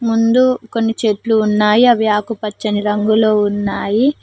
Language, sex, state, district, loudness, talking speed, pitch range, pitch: Telugu, female, Telangana, Mahabubabad, -15 LUFS, 115 wpm, 210-230 Hz, 220 Hz